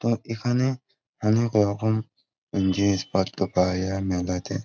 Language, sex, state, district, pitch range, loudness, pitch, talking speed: Bengali, male, West Bengal, Jhargram, 95-115 Hz, -25 LUFS, 105 Hz, 115 wpm